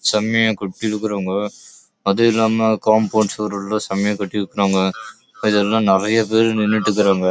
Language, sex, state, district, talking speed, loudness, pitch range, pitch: Tamil, male, Karnataka, Chamarajanagar, 55 wpm, -18 LUFS, 100-110 Hz, 105 Hz